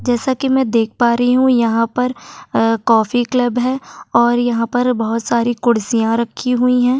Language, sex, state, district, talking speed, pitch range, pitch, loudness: Hindi, female, Maharashtra, Chandrapur, 190 wpm, 230-250 Hz, 240 Hz, -16 LUFS